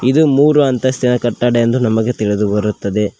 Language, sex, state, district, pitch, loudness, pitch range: Kannada, male, Karnataka, Koppal, 120 Hz, -14 LUFS, 105-130 Hz